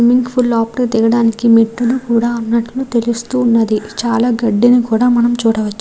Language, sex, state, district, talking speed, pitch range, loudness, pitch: Telugu, female, Andhra Pradesh, Srikakulam, 145 wpm, 225-240 Hz, -14 LUFS, 235 Hz